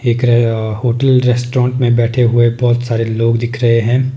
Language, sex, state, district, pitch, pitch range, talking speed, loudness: Hindi, male, Himachal Pradesh, Shimla, 120 Hz, 115-125 Hz, 200 wpm, -13 LUFS